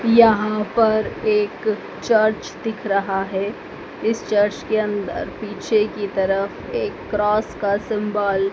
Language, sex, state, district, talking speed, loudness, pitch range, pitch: Hindi, female, Madhya Pradesh, Dhar, 135 wpm, -21 LUFS, 200-220 Hz, 210 Hz